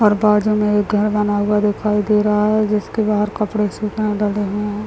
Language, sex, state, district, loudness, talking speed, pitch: Hindi, male, Bihar, Muzaffarpur, -17 LUFS, 220 wpm, 210 Hz